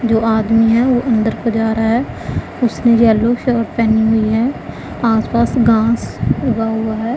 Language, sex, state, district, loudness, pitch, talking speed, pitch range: Hindi, female, Punjab, Pathankot, -15 LUFS, 225 Hz, 165 wpm, 225-235 Hz